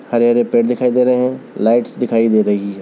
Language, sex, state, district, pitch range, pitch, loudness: Hindi, male, Rajasthan, Churu, 115-125 Hz, 120 Hz, -15 LUFS